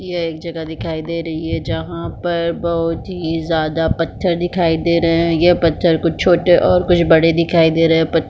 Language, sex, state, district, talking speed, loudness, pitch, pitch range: Hindi, female, Chhattisgarh, Bilaspur, 210 wpm, -16 LUFS, 165 Hz, 160-170 Hz